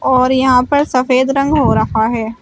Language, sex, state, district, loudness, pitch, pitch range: Hindi, female, Uttar Pradesh, Shamli, -13 LUFS, 255 Hz, 250-275 Hz